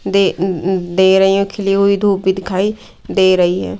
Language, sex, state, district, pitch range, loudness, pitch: Hindi, female, Delhi, New Delhi, 185-195 Hz, -14 LUFS, 190 Hz